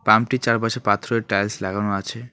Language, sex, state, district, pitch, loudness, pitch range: Bengali, male, West Bengal, Alipurduar, 110 Hz, -21 LUFS, 100-115 Hz